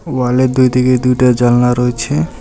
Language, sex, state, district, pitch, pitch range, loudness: Bengali, male, West Bengal, Alipurduar, 125 Hz, 120-130 Hz, -12 LUFS